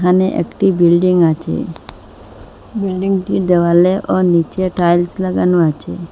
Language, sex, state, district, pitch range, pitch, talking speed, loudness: Bengali, female, Assam, Hailakandi, 170-185 Hz, 180 Hz, 110 wpm, -14 LUFS